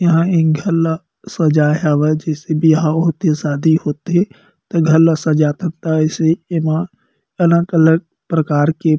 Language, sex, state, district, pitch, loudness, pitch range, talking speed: Chhattisgarhi, male, Chhattisgarh, Kabirdham, 160 Hz, -15 LUFS, 155-170 Hz, 145 wpm